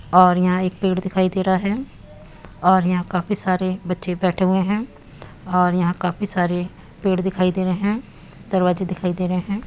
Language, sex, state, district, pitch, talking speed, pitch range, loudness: Hindi, female, Uttar Pradesh, Muzaffarnagar, 185 Hz, 185 wpm, 180-190 Hz, -20 LUFS